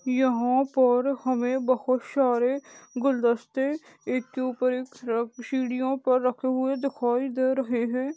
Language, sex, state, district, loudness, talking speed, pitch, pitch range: Hindi, female, Goa, North and South Goa, -26 LUFS, 140 wpm, 255 Hz, 250-265 Hz